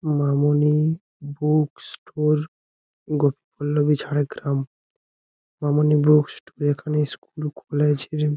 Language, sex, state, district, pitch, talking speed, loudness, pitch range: Bengali, male, West Bengal, Jhargram, 150 Hz, 95 wpm, -22 LUFS, 145-150 Hz